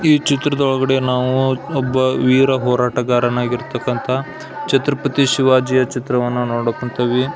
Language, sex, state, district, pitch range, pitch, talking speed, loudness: Kannada, male, Karnataka, Belgaum, 125-135 Hz, 130 Hz, 115 wpm, -17 LUFS